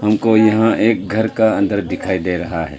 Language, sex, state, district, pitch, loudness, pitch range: Hindi, male, Arunachal Pradesh, Lower Dibang Valley, 105 Hz, -16 LUFS, 90-110 Hz